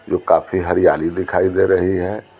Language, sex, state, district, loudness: Hindi, male, Bihar, Patna, -17 LUFS